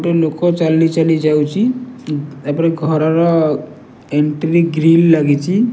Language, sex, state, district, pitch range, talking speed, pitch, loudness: Odia, male, Odisha, Nuapada, 150-170 Hz, 105 wpm, 160 Hz, -14 LUFS